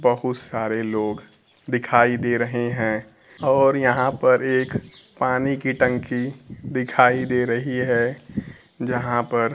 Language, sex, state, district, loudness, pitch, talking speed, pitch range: Hindi, male, Bihar, Kaimur, -21 LUFS, 125 Hz, 125 wpm, 120-130 Hz